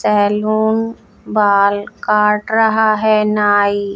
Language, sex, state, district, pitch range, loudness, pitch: Hindi, female, Haryana, Jhajjar, 205-215 Hz, -14 LUFS, 210 Hz